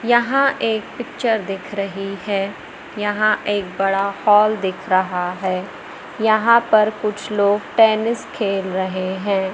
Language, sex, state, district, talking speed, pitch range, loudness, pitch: Hindi, female, Madhya Pradesh, Umaria, 130 wpm, 195-220 Hz, -19 LUFS, 205 Hz